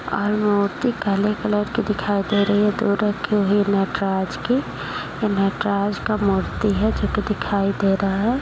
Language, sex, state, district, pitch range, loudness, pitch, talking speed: Hindi, female, Uttar Pradesh, Muzaffarnagar, 200-210 Hz, -21 LUFS, 205 Hz, 170 wpm